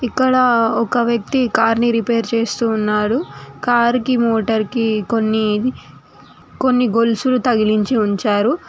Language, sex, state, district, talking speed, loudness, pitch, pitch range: Telugu, female, Telangana, Mahabubabad, 115 wpm, -17 LUFS, 230 Hz, 220-245 Hz